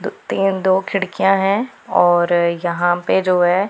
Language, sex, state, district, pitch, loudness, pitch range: Hindi, female, Punjab, Pathankot, 185 Hz, -17 LUFS, 175-195 Hz